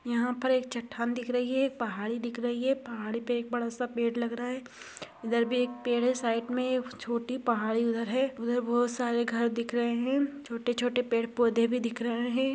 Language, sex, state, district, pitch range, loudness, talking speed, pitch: Hindi, female, Maharashtra, Aurangabad, 235-250 Hz, -30 LUFS, 225 wpm, 240 Hz